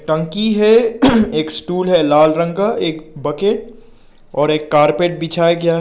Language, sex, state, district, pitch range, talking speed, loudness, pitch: Hindi, male, Nagaland, Kohima, 155-215 Hz, 165 wpm, -15 LUFS, 170 Hz